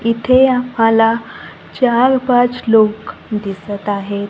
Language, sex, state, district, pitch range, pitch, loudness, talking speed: Marathi, female, Maharashtra, Gondia, 210-250 Hz, 225 Hz, -14 LUFS, 100 wpm